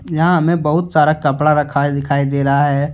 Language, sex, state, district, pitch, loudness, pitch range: Hindi, male, Jharkhand, Deoghar, 150 Hz, -15 LUFS, 140-155 Hz